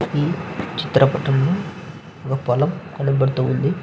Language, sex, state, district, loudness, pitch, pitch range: Telugu, male, Andhra Pradesh, Visakhapatnam, -20 LUFS, 145 Hz, 135-175 Hz